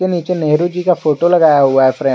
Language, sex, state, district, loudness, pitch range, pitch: Hindi, male, Jharkhand, Garhwa, -13 LUFS, 145-175 Hz, 160 Hz